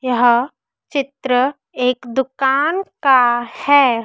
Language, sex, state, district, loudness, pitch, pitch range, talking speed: Hindi, female, Madhya Pradesh, Dhar, -17 LUFS, 260 Hz, 245-280 Hz, 90 wpm